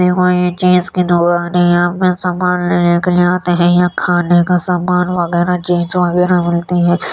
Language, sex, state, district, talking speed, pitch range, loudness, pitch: Hindi, male, Uttar Pradesh, Jyotiba Phule Nagar, 200 wpm, 175-180 Hz, -13 LUFS, 180 Hz